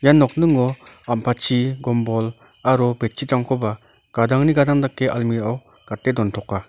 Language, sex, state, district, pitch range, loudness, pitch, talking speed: Garo, male, Meghalaya, North Garo Hills, 115-130 Hz, -20 LUFS, 125 Hz, 100 wpm